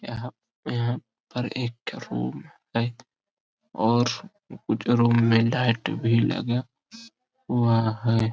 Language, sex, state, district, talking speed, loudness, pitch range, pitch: Hindi, male, Jharkhand, Sahebganj, 115 wpm, -25 LUFS, 115-130 Hz, 120 Hz